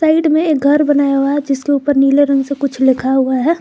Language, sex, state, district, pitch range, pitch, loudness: Hindi, female, Jharkhand, Garhwa, 275-290 Hz, 280 Hz, -13 LUFS